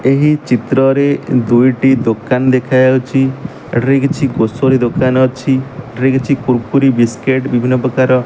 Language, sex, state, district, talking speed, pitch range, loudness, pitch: Odia, male, Odisha, Malkangiri, 125 wpm, 125-135 Hz, -13 LUFS, 130 Hz